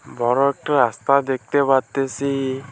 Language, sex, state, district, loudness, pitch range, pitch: Bengali, male, West Bengal, Alipurduar, -20 LUFS, 130-140 Hz, 135 Hz